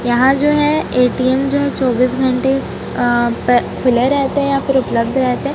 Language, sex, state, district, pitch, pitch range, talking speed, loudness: Hindi, female, Chhattisgarh, Raipur, 260 Hz, 245-275 Hz, 195 wpm, -15 LUFS